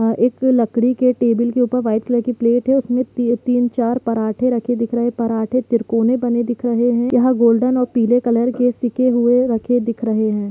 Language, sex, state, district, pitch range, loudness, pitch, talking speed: Hindi, female, Jharkhand, Sahebganj, 230-250 Hz, -17 LUFS, 240 Hz, 210 wpm